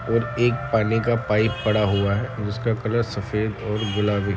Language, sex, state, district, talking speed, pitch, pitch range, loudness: Hindi, male, Uttar Pradesh, Budaun, 190 wpm, 110 Hz, 105-115 Hz, -23 LUFS